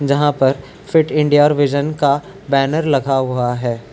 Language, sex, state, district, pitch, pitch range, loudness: Hindi, male, Uttarakhand, Tehri Garhwal, 140 Hz, 135-150 Hz, -16 LUFS